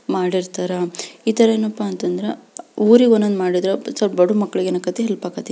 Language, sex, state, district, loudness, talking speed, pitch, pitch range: Kannada, female, Karnataka, Belgaum, -18 LUFS, 150 wpm, 195 Hz, 180-220 Hz